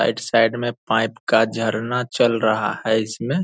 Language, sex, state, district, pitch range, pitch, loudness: Angika, male, Bihar, Purnia, 110-120 Hz, 115 Hz, -20 LUFS